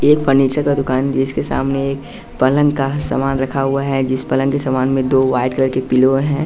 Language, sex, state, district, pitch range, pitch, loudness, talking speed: Hindi, male, Bihar, West Champaran, 130-140 Hz, 135 Hz, -16 LUFS, 215 wpm